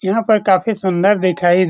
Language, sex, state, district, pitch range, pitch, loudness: Hindi, male, Bihar, Saran, 185-210 Hz, 190 Hz, -15 LUFS